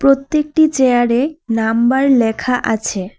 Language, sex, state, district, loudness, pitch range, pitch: Bengali, female, West Bengal, Alipurduar, -15 LUFS, 225-275 Hz, 250 Hz